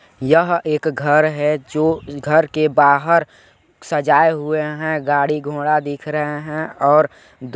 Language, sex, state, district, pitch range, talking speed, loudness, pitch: Hindi, male, Chhattisgarh, Balrampur, 145-155 Hz, 150 wpm, -17 LUFS, 150 Hz